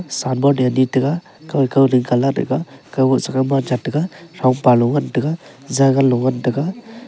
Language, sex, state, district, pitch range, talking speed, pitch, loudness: Wancho, male, Arunachal Pradesh, Longding, 130-145 Hz, 170 wpm, 135 Hz, -17 LUFS